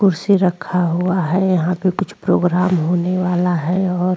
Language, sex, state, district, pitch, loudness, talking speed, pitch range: Hindi, female, Goa, North and South Goa, 180 Hz, -17 LUFS, 185 wpm, 175-185 Hz